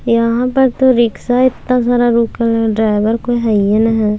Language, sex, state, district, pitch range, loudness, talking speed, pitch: Maithili, female, Bihar, Samastipur, 220-245 Hz, -13 LUFS, 185 wpm, 235 Hz